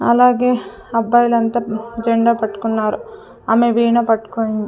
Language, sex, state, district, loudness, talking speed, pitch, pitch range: Telugu, female, Andhra Pradesh, Sri Satya Sai, -16 LUFS, 90 wpm, 230 Hz, 225-240 Hz